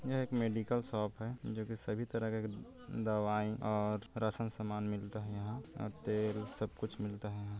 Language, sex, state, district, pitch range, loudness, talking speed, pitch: Hindi, male, Chhattisgarh, Korba, 105-115 Hz, -39 LUFS, 190 wpm, 110 Hz